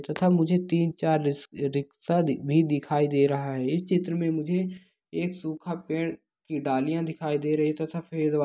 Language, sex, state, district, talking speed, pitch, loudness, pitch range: Hindi, male, Andhra Pradesh, Visakhapatnam, 190 wpm, 160 Hz, -27 LUFS, 145-170 Hz